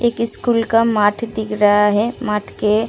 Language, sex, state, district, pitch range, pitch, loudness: Hindi, female, Uttar Pradesh, Muzaffarnagar, 210-230 Hz, 220 Hz, -16 LUFS